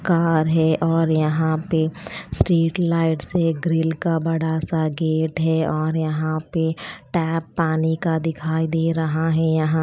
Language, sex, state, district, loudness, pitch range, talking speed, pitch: Hindi, female, Chandigarh, Chandigarh, -21 LUFS, 160-165 Hz, 160 wpm, 160 Hz